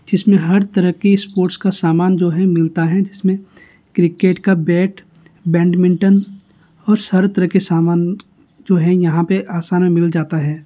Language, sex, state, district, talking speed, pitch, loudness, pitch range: Hindi, male, Bihar, Gaya, 170 wpm, 180 Hz, -15 LUFS, 170-195 Hz